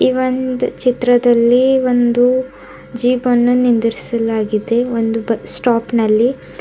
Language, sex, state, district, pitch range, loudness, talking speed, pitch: Kannada, female, Karnataka, Bidar, 230-250 Hz, -15 LUFS, 100 wpm, 245 Hz